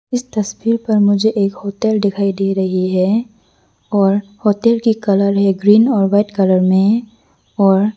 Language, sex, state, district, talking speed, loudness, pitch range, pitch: Hindi, female, Arunachal Pradesh, Lower Dibang Valley, 160 wpm, -15 LUFS, 195-220 Hz, 205 Hz